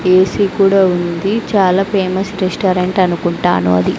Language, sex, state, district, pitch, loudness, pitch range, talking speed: Telugu, female, Andhra Pradesh, Sri Satya Sai, 185 Hz, -14 LUFS, 180-195 Hz, 135 wpm